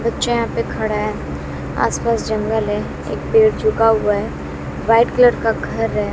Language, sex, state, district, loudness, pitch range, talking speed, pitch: Hindi, female, Bihar, West Champaran, -18 LUFS, 215-235 Hz, 185 wpm, 225 Hz